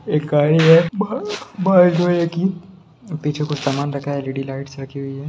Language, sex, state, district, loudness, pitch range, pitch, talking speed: Hindi, male, Bihar, Sitamarhi, -18 LUFS, 140-180 Hz, 155 Hz, 160 wpm